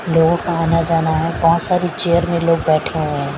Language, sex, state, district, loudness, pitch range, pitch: Hindi, female, Maharashtra, Mumbai Suburban, -16 LUFS, 160-170 Hz, 165 Hz